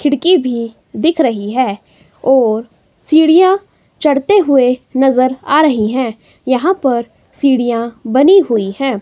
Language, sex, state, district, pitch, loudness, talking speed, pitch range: Hindi, female, Himachal Pradesh, Shimla, 260 Hz, -13 LUFS, 125 wpm, 230-300 Hz